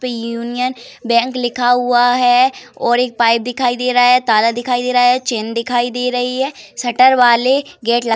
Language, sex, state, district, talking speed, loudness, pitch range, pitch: Hindi, female, Uttar Pradesh, Varanasi, 200 wpm, -15 LUFS, 240-250 Hz, 245 Hz